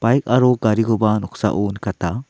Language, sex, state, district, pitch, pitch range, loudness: Garo, male, Meghalaya, South Garo Hills, 110 Hz, 100-120 Hz, -18 LUFS